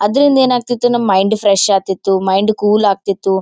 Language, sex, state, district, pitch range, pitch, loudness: Kannada, female, Karnataka, Gulbarga, 195-240 Hz, 205 Hz, -13 LUFS